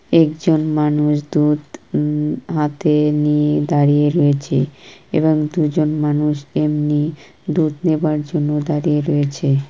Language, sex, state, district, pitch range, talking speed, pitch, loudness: Bengali, female, West Bengal, Purulia, 150-155 Hz, 105 wpm, 150 Hz, -17 LUFS